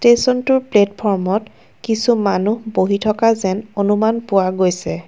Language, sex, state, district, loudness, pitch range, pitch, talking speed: Assamese, female, Assam, Kamrup Metropolitan, -17 LUFS, 195-230 Hz, 210 Hz, 120 wpm